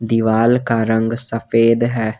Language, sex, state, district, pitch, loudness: Hindi, male, Jharkhand, Garhwa, 115 Hz, -16 LUFS